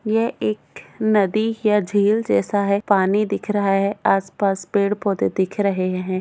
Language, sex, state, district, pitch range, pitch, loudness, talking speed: Hindi, female, Goa, North and South Goa, 195-210 Hz, 200 Hz, -20 LUFS, 165 wpm